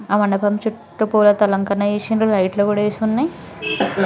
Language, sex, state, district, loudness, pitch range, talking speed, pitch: Telugu, female, Telangana, Karimnagar, -18 LUFS, 205-220 Hz, 165 wpm, 210 Hz